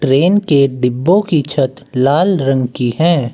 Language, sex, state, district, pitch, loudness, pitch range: Hindi, male, Uttar Pradesh, Lucknow, 140 Hz, -14 LUFS, 130-170 Hz